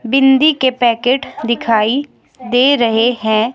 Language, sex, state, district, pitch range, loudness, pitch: Hindi, female, Himachal Pradesh, Shimla, 230-270 Hz, -13 LUFS, 245 Hz